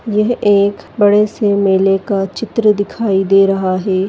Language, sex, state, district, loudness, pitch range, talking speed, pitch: Hindi, female, Goa, North and South Goa, -14 LUFS, 195-210 Hz, 160 wpm, 200 Hz